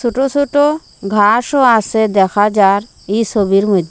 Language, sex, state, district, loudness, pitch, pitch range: Bengali, female, Assam, Hailakandi, -13 LUFS, 215 Hz, 200-255 Hz